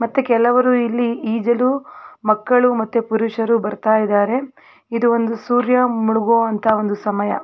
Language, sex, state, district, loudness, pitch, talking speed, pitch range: Kannada, female, Karnataka, Belgaum, -17 LUFS, 230 Hz, 105 wpm, 220-250 Hz